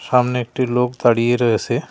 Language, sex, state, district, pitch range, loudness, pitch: Bengali, male, West Bengal, Cooch Behar, 120-125 Hz, -18 LUFS, 120 Hz